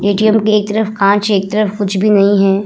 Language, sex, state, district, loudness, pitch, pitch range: Hindi, female, Bihar, Vaishali, -13 LUFS, 205 Hz, 200-215 Hz